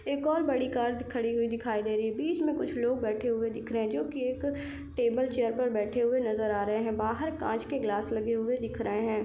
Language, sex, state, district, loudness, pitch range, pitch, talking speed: Hindi, female, Chhattisgarh, Sarguja, -30 LUFS, 220-255 Hz, 235 Hz, 260 wpm